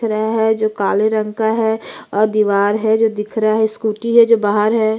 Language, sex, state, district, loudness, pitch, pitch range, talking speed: Hindi, female, Chhattisgarh, Bastar, -16 LUFS, 220 Hz, 215-220 Hz, 240 wpm